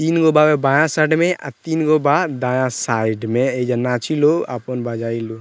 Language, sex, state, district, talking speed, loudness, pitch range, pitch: Bhojpuri, male, Bihar, Muzaffarpur, 190 wpm, -18 LUFS, 120-155 Hz, 135 Hz